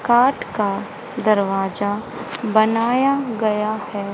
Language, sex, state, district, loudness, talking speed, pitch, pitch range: Hindi, female, Haryana, Rohtak, -20 LUFS, 85 wpm, 215 Hz, 205-235 Hz